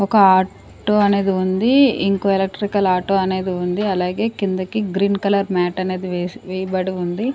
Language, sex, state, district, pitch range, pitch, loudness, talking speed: Telugu, female, Andhra Pradesh, Sri Satya Sai, 185-200 Hz, 195 Hz, -18 LUFS, 145 wpm